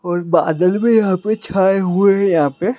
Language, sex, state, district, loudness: Hindi, male, Bihar, Jamui, -15 LUFS